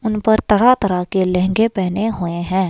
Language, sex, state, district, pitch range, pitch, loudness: Hindi, female, Himachal Pradesh, Shimla, 185-220 Hz, 195 Hz, -17 LUFS